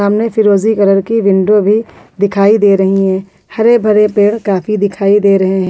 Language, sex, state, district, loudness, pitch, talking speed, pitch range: Hindi, female, Bihar, Katihar, -11 LUFS, 205 Hz, 190 wpm, 195-210 Hz